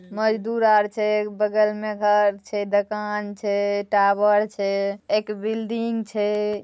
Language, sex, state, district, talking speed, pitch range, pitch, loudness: Maithili, female, Bihar, Saharsa, 125 wpm, 205-215 Hz, 210 Hz, -22 LUFS